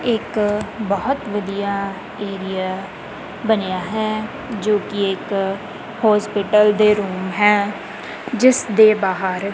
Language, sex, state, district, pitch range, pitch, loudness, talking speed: Punjabi, male, Punjab, Kapurthala, 195-215 Hz, 205 Hz, -19 LUFS, 100 wpm